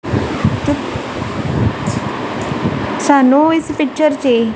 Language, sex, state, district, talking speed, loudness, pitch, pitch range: Punjabi, female, Punjab, Kapurthala, 65 wpm, -16 LUFS, 295 Hz, 265-310 Hz